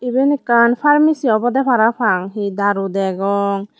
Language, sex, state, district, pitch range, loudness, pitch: Chakma, female, Tripura, Dhalai, 200-250 Hz, -16 LUFS, 220 Hz